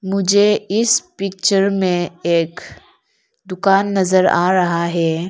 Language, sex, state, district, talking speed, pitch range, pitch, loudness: Hindi, female, Arunachal Pradesh, Lower Dibang Valley, 115 wpm, 175-200 Hz, 190 Hz, -16 LUFS